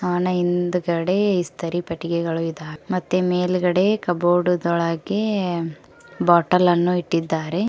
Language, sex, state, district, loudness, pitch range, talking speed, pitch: Kannada, female, Karnataka, Koppal, -21 LUFS, 170-180 Hz, 95 wpm, 175 Hz